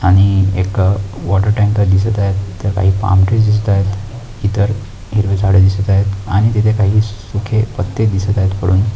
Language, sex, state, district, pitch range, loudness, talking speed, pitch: Marathi, male, Maharashtra, Aurangabad, 95-105 Hz, -14 LUFS, 165 wpm, 100 Hz